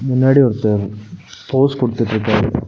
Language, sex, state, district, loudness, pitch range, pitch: Tamil, male, Tamil Nadu, Nilgiris, -16 LUFS, 110-130 Hz, 115 Hz